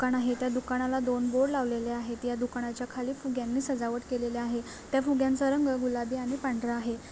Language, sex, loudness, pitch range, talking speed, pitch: Marathi, female, -30 LUFS, 240-260 Hz, 185 wpm, 250 Hz